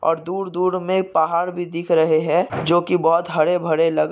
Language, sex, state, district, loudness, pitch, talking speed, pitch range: Hindi, male, Maharashtra, Nagpur, -19 LUFS, 170 Hz, 220 wpm, 160-180 Hz